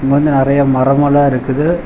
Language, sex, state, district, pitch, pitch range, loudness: Tamil, male, Tamil Nadu, Chennai, 140 Hz, 135-145 Hz, -12 LUFS